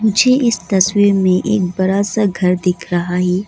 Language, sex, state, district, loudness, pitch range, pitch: Hindi, female, Arunachal Pradesh, Lower Dibang Valley, -15 LUFS, 180-210 Hz, 190 Hz